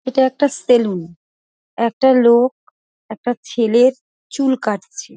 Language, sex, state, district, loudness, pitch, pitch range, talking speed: Bengali, female, West Bengal, North 24 Parganas, -16 LUFS, 245 Hz, 225-260 Hz, 115 wpm